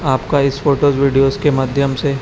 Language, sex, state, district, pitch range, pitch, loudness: Hindi, male, Chhattisgarh, Raipur, 135-140 Hz, 140 Hz, -15 LUFS